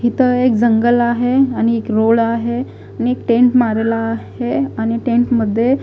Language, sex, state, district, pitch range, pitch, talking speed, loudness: Marathi, female, Maharashtra, Gondia, 225-245 Hz, 235 Hz, 165 wpm, -15 LUFS